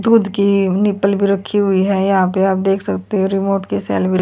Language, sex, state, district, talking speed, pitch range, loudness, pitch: Hindi, female, Haryana, Charkhi Dadri, 240 wpm, 190-200 Hz, -16 LUFS, 195 Hz